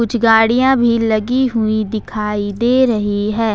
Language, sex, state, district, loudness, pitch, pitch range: Hindi, female, Jharkhand, Ranchi, -15 LUFS, 225 Hz, 215-235 Hz